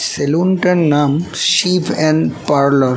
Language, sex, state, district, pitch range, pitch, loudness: Bengali, male, West Bengal, North 24 Parganas, 140-180 Hz, 155 Hz, -14 LUFS